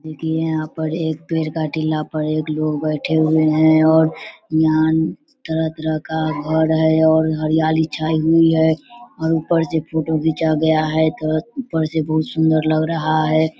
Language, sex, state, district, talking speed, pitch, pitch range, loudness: Hindi, male, Bihar, Vaishali, 175 wpm, 160 Hz, 155-160 Hz, -18 LUFS